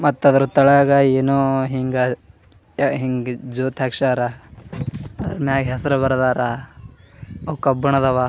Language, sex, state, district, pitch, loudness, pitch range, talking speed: Kannada, male, Karnataka, Gulbarga, 130 Hz, -19 LUFS, 125-140 Hz, 85 wpm